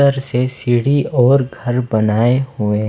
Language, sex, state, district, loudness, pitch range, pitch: Hindi, male, Himachal Pradesh, Shimla, -16 LUFS, 120-135 Hz, 125 Hz